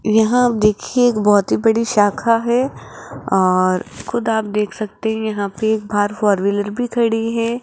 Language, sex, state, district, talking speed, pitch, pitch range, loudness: Hindi, female, Rajasthan, Jaipur, 180 wpm, 220 Hz, 205-230 Hz, -17 LUFS